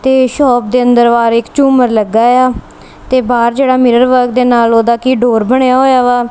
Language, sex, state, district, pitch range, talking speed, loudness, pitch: Punjabi, female, Punjab, Kapurthala, 235-255 Hz, 210 wpm, -9 LUFS, 245 Hz